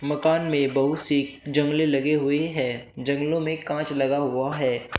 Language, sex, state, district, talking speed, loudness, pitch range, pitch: Hindi, male, Uttar Pradesh, Shamli, 170 wpm, -24 LUFS, 135-150 Hz, 145 Hz